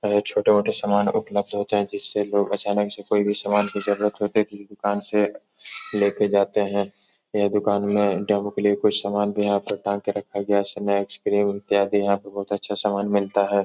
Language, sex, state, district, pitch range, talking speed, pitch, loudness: Hindi, male, Uttar Pradesh, Etah, 100-105 Hz, 205 wpm, 100 Hz, -23 LUFS